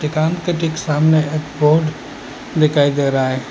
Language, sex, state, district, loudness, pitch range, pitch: Hindi, male, Assam, Hailakandi, -17 LUFS, 145-155 Hz, 155 Hz